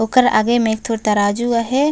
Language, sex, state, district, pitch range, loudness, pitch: Chhattisgarhi, female, Chhattisgarh, Raigarh, 220-250 Hz, -16 LUFS, 230 Hz